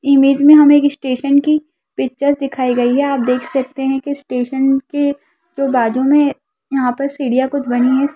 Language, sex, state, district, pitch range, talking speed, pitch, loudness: Hindi, female, Bihar, Madhepura, 260-285 Hz, 190 wpm, 275 Hz, -15 LUFS